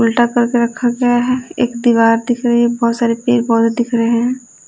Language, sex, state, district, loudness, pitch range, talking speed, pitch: Hindi, female, Delhi, New Delhi, -14 LUFS, 235-245 Hz, 220 wpm, 240 Hz